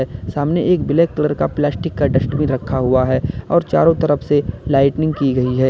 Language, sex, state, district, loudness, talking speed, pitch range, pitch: Hindi, male, Uttar Pradesh, Lalitpur, -17 LUFS, 200 wpm, 130-150 Hz, 140 Hz